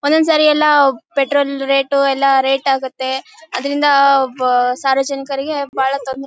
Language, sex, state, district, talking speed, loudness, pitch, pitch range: Kannada, female, Karnataka, Bellary, 125 wpm, -15 LUFS, 275 Hz, 270-285 Hz